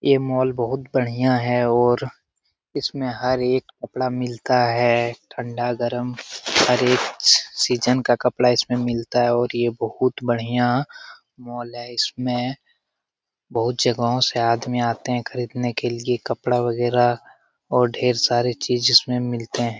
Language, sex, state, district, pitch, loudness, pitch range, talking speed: Hindi, male, Bihar, Jamui, 125 Hz, -21 LUFS, 120-125 Hz, 150 wpm